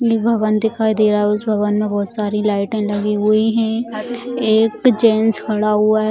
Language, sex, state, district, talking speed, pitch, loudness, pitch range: Hindi, female, Bihar, Sitamarhi, 195 wpm, 215 Hz, -16 LUFS, 210-225 Hz